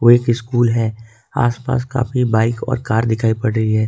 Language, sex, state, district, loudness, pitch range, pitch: Hindi, male, Jharkhand, Ranchi, -17 LUFS, 110-120 Hz, 120 Hz